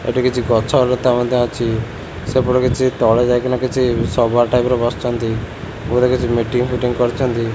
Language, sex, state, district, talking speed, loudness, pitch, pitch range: Odia, male, Odisha, Khordha, 160 wpm, -17 LUFS, 120 Hz, 115-125 Hz